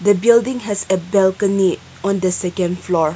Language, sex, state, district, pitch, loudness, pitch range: English, female, Nagaland, Kohima, 190 Hz, -17 LUFS, 180-205 Hz